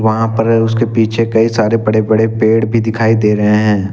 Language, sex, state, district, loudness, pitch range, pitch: Hindi, male, Jharkhand, Ranchi, -12 LUFS, 110-115 Hz, 110 Hz